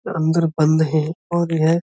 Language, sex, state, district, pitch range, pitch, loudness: Hindi, male, Uttar Pradesh, Budaun, 155-170 Hz, 160 Hz, -19 LUFS